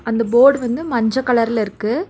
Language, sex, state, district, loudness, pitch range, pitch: Tamil, female, Tamil Nadu, Nilgiris, -16 LUFS, 230-255 Hz, 235 Hz